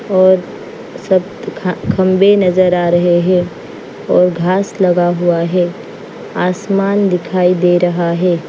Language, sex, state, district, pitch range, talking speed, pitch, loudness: Hindi, female, Bihar, Patna, 175-190 Hz, 125 wpm, 180 Hz, -13 LUFS